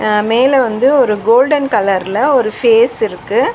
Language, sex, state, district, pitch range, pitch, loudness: Tamil, female, Tamil Nadu, Chennai, 215-295 Hz, 255 Hz, -12 LUFS